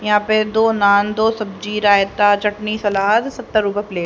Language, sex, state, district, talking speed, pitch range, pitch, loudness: Hindi, female, Haryana, Jhajjar, 190 wpm, 205-215 Hz, 210 Hz, -16 LUFS